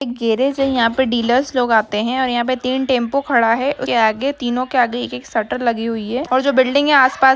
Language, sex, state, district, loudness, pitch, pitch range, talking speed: Hindi, female, Bihar, Jahanabad, -17 LUFS, 250 Hz, 235-265 Hz, 255 wpm